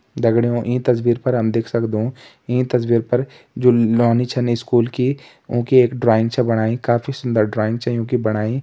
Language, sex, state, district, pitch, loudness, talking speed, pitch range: Hindi, male, Uttarakhand, Tehri Garhwal, 120 Hz, -18 LUFS, 180 wpm, 115-125 Hz